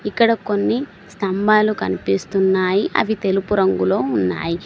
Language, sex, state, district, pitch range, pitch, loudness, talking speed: Telugu, female, Telangana, Mahabubabad, 190-215 Hz, 195 Hz, -18 LUFS, 105 wpm